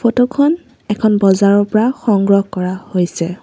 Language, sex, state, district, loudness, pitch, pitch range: Assamese, female, Assam, Sonitpur, -14 LUFS, 205 Hz, 190-235 Hz